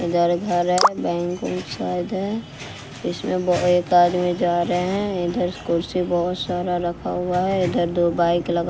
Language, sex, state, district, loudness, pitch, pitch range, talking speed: Hindi, female, Bihar, West Champaran, -21 LUFS, 175 Hz, 175-180 Hz, 170 wpm